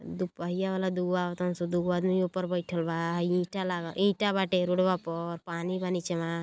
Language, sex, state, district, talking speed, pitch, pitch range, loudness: Bhojpuri, female, Uttar Pradesh, Gorakhpur, 175 wpm, 180 Hz, 170-185 Hz, -30 LUFS